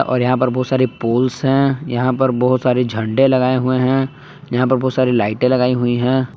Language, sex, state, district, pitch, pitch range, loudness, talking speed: Hindi, male, Jharkhand, Palamu, 130 Hz, 125-130 Hz, -16 LUFS, 215 wpm